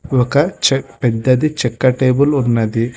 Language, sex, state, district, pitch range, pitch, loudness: Telugu, male, Telangana, Hyderabad, 120-140 Hz, 130 Hz, -15 LUFS